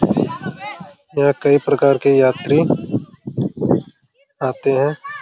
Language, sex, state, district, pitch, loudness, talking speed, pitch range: Hindi, male, Jharkhand, Jamtara, 140 Hz, -18 LUFS, 80 wpm, 135-155 Hz